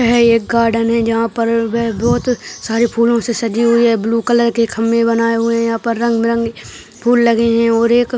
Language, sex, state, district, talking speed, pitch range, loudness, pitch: Hindi, male, Uttarakhand, Tehri Garhwal, 235 wpm, 230-235 Hz, -14 LUFS, 230 Hz